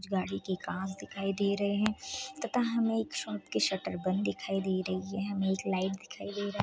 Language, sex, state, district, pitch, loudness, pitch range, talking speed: Hindi, female, Bihar, Purnia, 195 Hz, -33 LUFS, 185-205 Hz, 225 wpm